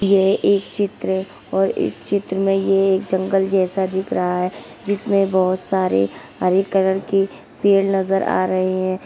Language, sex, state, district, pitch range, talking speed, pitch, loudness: Hindi, female, Uttar Pradesh, Ghazipur, 185-195 Hz, 170 wpm, 190 Hz, -19 LUFS